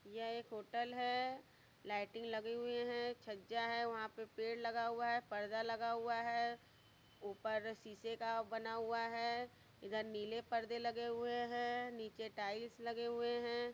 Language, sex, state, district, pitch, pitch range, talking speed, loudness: Hindi, female, Uttar Pradesh, Varanasi, 230 Hz, 225-235 Hz, 155 wpm, -43 LUFS